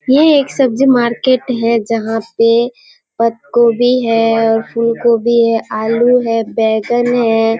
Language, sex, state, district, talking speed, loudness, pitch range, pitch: Hindi, female, Bihar, Kishanganj, 135 wpm, -13 LUFS, 225-245 Hz, 230 Hz